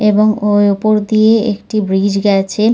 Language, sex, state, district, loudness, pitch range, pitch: Bengali, female, West Bengal, Dakshin Dinajpur, -13 LUFS, 200-215 Hz, 210 Hz